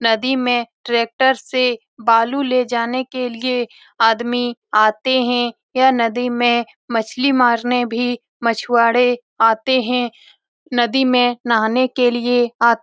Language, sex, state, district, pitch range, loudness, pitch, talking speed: Hindi, female, Bihar, Lakhisarai, 235-250 Hz, -17 LUFS, 245 Hz, 130 wpm